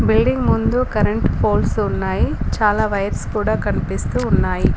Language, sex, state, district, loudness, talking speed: Telugu, female, Telangana, Komaram Bheem, -18 LUFS, 125 wpm